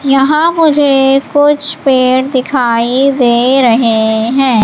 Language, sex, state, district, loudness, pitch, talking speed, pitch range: Hindi, female, Madhya Pradesh, Katni, -10 LUFS, 265 Hz, 105 wpm, 240-275 Hz